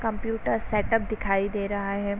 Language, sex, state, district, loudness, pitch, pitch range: Hindi, female, Uttar Pradesh, Varanasi, -27 LUFS, 210 Hz, 200-225 Hz